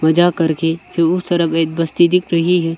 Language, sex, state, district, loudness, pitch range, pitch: Hindi, male, Arunachal Pradesh, Longding, -16 LUFS, 165-175 Hz, 170 Hz